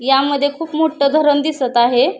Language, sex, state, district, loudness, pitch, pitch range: Marathi, female, Maharashtra, Pune, -15 LUFS, 285 Hz, 270-310 Hz